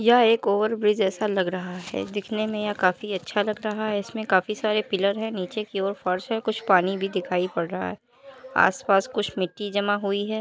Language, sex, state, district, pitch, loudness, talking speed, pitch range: Hindi, male, Uttar Pradesh, Jalaun, 205 Hz, -25 LUFS, 225 wpm, 190-215 Hz